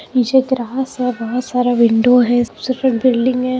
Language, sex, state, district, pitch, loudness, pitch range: Hindi, female, Bihar, Muzaffarpur, 250 Hz, -15 LUFS, 240-255 Hz